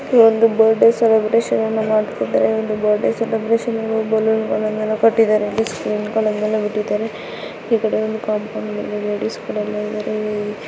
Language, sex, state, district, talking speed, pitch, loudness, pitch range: Kannada, female, Karnataka, Dakshina Kannada, 120 wpm, 215 Hz, -18 LUFS, 210-225 Hz